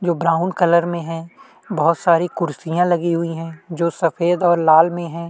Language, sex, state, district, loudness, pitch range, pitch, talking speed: Hindi, male, Chhattisgarh, Kabirdham, -18 LUFS, 165-175 Hz, 170 Hz, 190 wpm